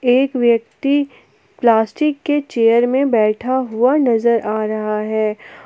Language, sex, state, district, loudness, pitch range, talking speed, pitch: Hindi, female, Jharkhand, Palamu, -16 LUFS, 220-265 Hz, 125 wpm, 235 Hz